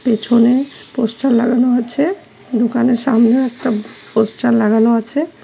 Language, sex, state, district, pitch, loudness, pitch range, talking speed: Bengali, female, West Bengal, Cooch Behar, 240 Hz, -15 LUFS, 230-255 Hz, 120 wpm